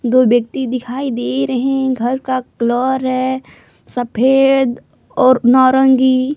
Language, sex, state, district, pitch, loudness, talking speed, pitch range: Hindi, female, Jharkhand, Palamu, 255 Hz, -15 LUFS, 120 wpm, 245-265 Hz